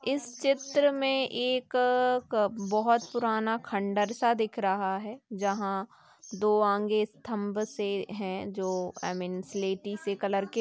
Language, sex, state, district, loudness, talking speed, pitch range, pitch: Hindi, female, Chhattisgarh, Sukma, -29 LUFS, 140 wpm, 200-240 Hz, 210 Hz